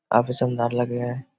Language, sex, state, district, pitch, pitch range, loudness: Hindi, male, Bihar, Vaishali, 120 Hz, 120-125 Hz, -24 LUFS